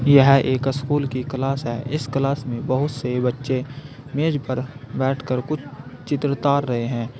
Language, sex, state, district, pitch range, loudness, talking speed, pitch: Hindi, male, Uttar Pradesh, Saharanpur, 125-140 Hz, -22 LUFS, 165 wpm, 135 Hz